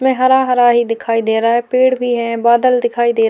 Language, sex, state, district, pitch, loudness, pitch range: Hindi, female, Maharashtra, Chandrapur, 240 Hz, -13 LUFS, 230-255 Hz